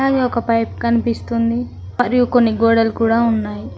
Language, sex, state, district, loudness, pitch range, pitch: Telugu, female, Telangana, Mahabubabad, -17 LUFS, 225-240 Hz, 230 Hz